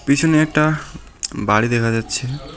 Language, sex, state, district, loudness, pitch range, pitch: Bengali, male, West Bengal, Alipurduar, -18 LUFS, 115-155 Hz, 140 Hz